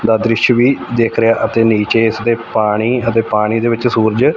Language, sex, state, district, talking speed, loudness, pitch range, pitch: Punjabi, male, Punjab, Fazilka, 190 wpm, -13 LUFS, 110-115 Hz, 115 Hz